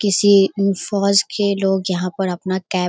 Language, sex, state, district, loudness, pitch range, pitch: Hindi, female, Bihar, Darbhanga, -17 LUFS, 185-200 Hz, 195 Hz